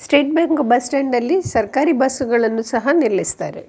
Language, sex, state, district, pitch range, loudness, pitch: Kannada, female, Karnataka, Dakshina Kannada, 240-290 Hz, -17 LUFS, 265 Hz